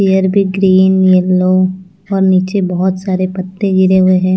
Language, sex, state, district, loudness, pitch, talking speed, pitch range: Hindi, female, Chandigarh, Chandigarh, -12 LUFS, 185 Hz, 135 wpm, 185-190 Hz